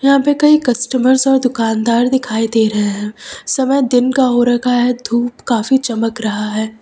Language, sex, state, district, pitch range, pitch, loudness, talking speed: Hindi, female, Uttar Pradesh, Lucknow, 225-265 Hz, 245 Hz, -14 LUFS, 185 wpm